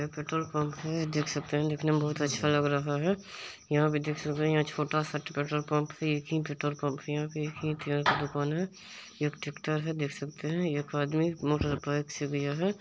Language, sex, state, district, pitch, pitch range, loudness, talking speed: Maithili, male, Bihar, Supaul, 150 Hz, 145-155 Hz, -31 LUFS, 235 wpm